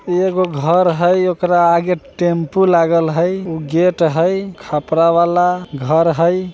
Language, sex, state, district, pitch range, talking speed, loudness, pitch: Bajjika, male, Bihar, Vaishali, 165-180 Hz, 155 wpm, -15 LUFS, 175 Hz